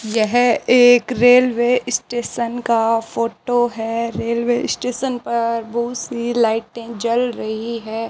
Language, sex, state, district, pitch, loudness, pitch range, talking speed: Hindi, female, Rajasthan, Bikaner, 235 Hz, -18 LUFS, 230-245 Hz, 120 wpm